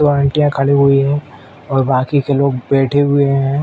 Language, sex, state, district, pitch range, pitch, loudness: Hindi, male, Uttar Pradesh, Ghazipur, 135-145 Hz, 140 Hz, -14 LUFS